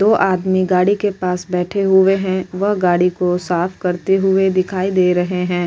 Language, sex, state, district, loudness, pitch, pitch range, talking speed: Hindi, female, Maharashtra, Chandrapur, -16 LUFS, 185 Hz, 180-190 Hz, 190 wpm